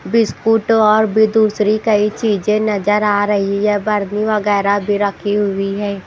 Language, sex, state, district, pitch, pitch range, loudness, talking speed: Hindi, female, Bihar, Katihar, 210 Hz, 205-215 Hz, -15 LUFS, 160 wpm